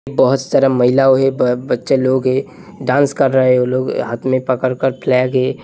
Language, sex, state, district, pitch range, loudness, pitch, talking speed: Hindi, male, Uttar Pradesh, Hamirpur, 125-135 Hz, -15 LUFS, 130 Hz, 200 wpm